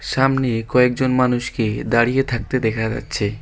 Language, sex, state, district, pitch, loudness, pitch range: Bengali, male, West Bengal, Alipurduar, 120 Hz, -19 LUFS, 110-130 Hz